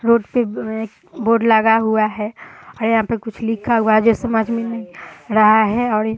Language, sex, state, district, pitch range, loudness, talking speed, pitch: Hindi, female, Bihar, Sitamarhi, 220-230 Hz, -17 LUFS, 230 wpm, 225 Hz